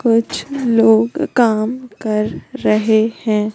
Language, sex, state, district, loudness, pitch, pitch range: Hindi, female, Madhya Pradesh, Katni, -16 LUFS, 225 Hz, 215-240 Hz